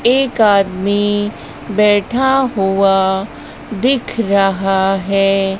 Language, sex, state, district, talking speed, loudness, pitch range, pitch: Hindi, male, Madhya Pradesh, Dhar, 75 wpm, -14 LUFS, 195-225 Hz, 200 Hz